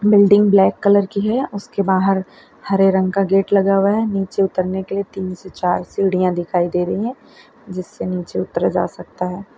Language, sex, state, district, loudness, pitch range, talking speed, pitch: Hindi, female, Gujarat, Valsad, -18 LUFS, 185-200 Hz, 200 wpm, 195 Hz